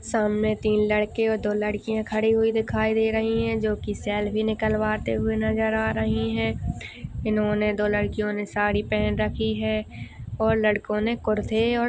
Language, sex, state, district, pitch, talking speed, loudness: Hindi, female, Maharashtra, Pune, 210 Hz, 170 wpm, -24 LUFS